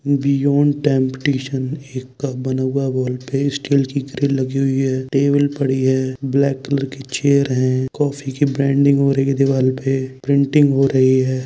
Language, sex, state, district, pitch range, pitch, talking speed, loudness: Hindi, male, Uttar Pradesh, Budaun, 130-140 Hz, 135 Hz, 100 wpm, -18 LUFS